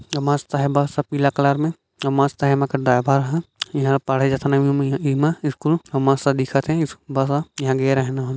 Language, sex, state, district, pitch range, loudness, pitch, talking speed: Hindi, male, Chhattisgarh, Bilaspur, 135-145 Hz, -20 LUFS, 140 Hz, 200 wpm